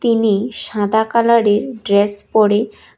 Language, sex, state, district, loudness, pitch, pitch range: Bengali, female, Tripura, West Tripura, -15 LUFS, 215 Hz, 205-230 Hz